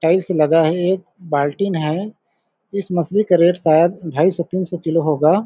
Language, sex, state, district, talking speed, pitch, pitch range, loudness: Hindi, male, Chhattisgarh, Balrampur, 220 wpm, 175 Hz, 160-185 Hz, -18 LUFS